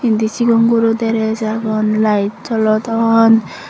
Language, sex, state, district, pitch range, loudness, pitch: Chakma, female, Tripura, Dhalai, 215-230 Hz, -14 LUFS, 225 Hz